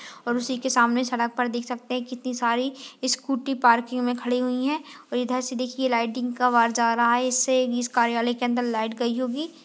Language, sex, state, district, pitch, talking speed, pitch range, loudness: Hindi, female, Goa, North and South Goa, 245 Hz, 220 wpm, 240-255 Hz, -24 LUFS